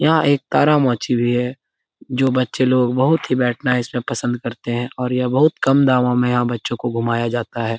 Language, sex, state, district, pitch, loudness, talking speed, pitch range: Hindi, male, Bihar, Lakhisarai, 125 Hz, -18 LUFS, 210 wpm, 120-135 Hz